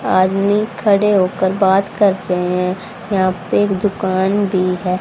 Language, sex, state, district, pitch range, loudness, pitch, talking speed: Hindi, female, Haryana, Rohtak, 185-200 Hz, -16 LUFS, 190 Hz, 155 wpm